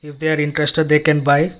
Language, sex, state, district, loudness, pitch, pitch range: English, male, Karnataka, Bangalore, -16 LUFS, 150 Hz, 150-155 Hz